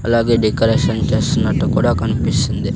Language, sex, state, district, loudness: Telugu, male, Andhra Pradesh, Sri Satya Sai, -16 LUFS